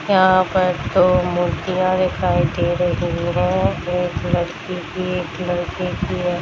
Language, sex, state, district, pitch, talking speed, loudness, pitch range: Hindi, female, Bihar, Darbhanga, 180 Hz, 140 wpm, -19 LUFS, 175-185 Hz